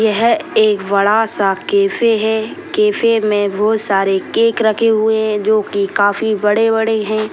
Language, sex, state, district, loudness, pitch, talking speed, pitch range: Hindi, female, Bihar, Sitamarhi, -14 LUFS, 215 Hz, 155 wpm, 205-225 Hz